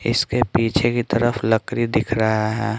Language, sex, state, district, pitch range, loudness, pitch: Hindi, male, Bihar, Patna, 110-120 Hz, -20 LUFS, 115 Hz